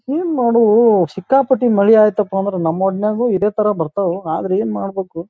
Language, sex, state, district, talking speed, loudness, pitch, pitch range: Kannada, male, Karnataka, Bijapur, 145 wpm, -15 LUFS, 205 Hz, 190-225 Hz